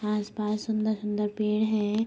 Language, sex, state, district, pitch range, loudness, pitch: Hindi, female, Uttar Pradesh, Budaun, 210-215 Hz, -28 LUFS, 210 Hz